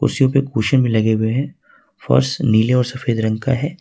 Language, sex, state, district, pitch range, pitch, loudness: Hindi, male, Jharkhand, Ranchi, 110-135 Hz, 125 Hz, -17 LUFS